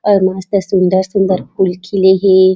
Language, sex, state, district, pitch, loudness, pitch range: Chhattisgarhi, female, Chhattisgarh, Raigarh, 190 Hz, -13 LUFS, 185-195 Hz